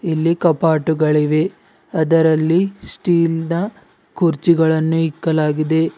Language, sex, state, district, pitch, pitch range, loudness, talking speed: Kannada, male, Karnataka, Bidar, 165 Hz, 160-170 Hz, -17 LUFS, 70 wpm